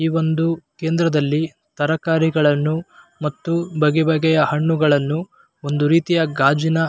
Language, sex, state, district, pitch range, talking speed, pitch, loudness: Kannada, male, Karnataka, Raichur, 150-165 Hz, 105 wpm, 160 Hz, -19 LUFS